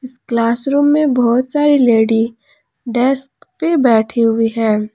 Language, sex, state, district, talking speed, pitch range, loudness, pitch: Hindi, female, Jharkhand, Ranchi, 135 wpm, 225-285 Hz, -14 LUFS, 245 Hz